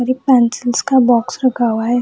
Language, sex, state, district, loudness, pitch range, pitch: Hindi, female, Bihar, Samastipur, -14 LUFS, 235-255 Hz, 245 Hz